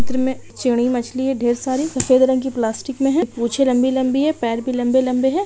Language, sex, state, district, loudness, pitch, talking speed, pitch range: Hindi, female, Bihar, Kishanganj, -19 LUFS, 260 Hz, 255 wpm, 245-265 Hz